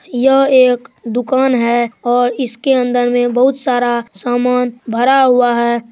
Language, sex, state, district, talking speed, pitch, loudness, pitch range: Hindi, female, Bihar, Supaul, 140 wpm, 245 Hz, -14 LUFS, 240-255 Hz